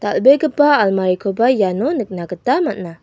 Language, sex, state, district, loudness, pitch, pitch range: Garo, female, Meghalaya, West Garo Hills, -16 LUFS, 210 Hz, 185-290 Hz